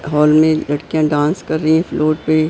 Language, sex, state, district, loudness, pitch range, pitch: Hindi, male, Maharashtra, Mumbai Suburban, -15 LUFS, 150-160 Hz, 155 Hz